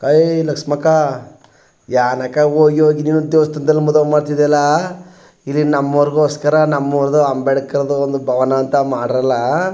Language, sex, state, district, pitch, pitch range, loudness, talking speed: Kannada, male, Karnataka, Chamarajanagar, 150 Hz, 140-155 Hz, -15 LUFS, 115 wpm